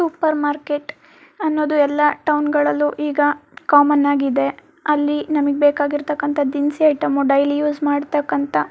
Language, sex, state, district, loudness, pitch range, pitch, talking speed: Kannada, female, Karnataka, Mysore, -18 LUFS, 285-300 Hz, 290 Hz, 115 wpm